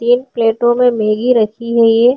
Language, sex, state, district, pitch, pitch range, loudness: Hindi, female, Uttarakhand, Tehri Garhwal, 235 Hz, 225-245 Hz, -13 LUFS